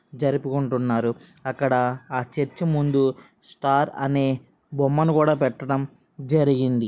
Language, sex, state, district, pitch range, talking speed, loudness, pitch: Telugu, male, Andhra Pradesh, Srikakulam, 130-145 Hz, 95 wpm, -23 LUFS, 135 Hz